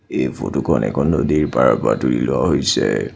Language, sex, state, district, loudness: Assamese, male, Assam, Sonitpur, -18 LUFS